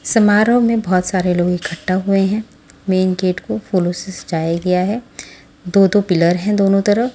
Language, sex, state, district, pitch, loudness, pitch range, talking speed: Hindi, female, Maharashtra, Washim, 190 Hz, -16 LUFS, 180-210 Hz, 185 wpm